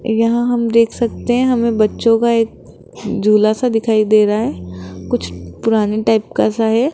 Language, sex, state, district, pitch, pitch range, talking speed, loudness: Hindi, female, Rajasthan, Jaipur, 225 Hz, 210-235 Hz, 180 wpm, -15 LUFS